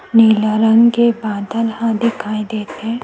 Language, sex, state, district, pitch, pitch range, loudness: Chhattisgarhi, female, Chhattisgarh, Sukma, 225 Hz, 215-230 Hz, -15 LUFS